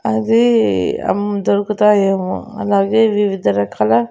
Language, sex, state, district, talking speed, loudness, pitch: Telugu, female, Andhra Pradesh, Annamaya, 90 wpm, -15 LUFS, 200 Hz